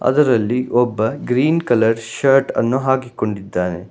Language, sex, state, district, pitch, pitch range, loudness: Kannada, male, Karnataka, Bangalore, 120 Hz, 110-130 Hz, -17 LUFS